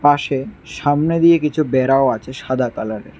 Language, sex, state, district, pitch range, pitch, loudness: Bengali, male, Tripura, West Tripura, 130-150 Hz, 135 Hz, -17 LUFS